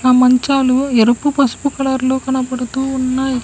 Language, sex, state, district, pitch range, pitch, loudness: Telugu, female, Telangana, Mahabubabad, 255-270 Hz, 260 Hz, -15 LUFS